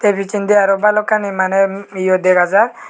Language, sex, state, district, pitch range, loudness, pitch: Chakma, male, Tripura, Unakoti, 190-205 Hz, -14 LUFS, 195 Hz